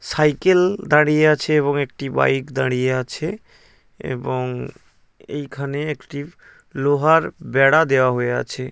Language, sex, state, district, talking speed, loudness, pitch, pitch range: Bengali, male, West Bengal, Paschim Medinipur, 110 wpm, -19 LUFS, 145 Hz, 130-155 Hz